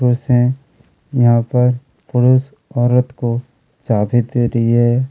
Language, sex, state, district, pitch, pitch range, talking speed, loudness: Hindi, male, Chhattisgarh, Kabirdham, 125 Hz, 120-125 Hz, 130 wpm, -16 LUFS